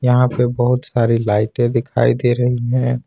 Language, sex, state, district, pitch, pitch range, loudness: Hindi, male, Jharkhand, Ranchi, 125 Hz, 120-125 Hz, -17 LUFS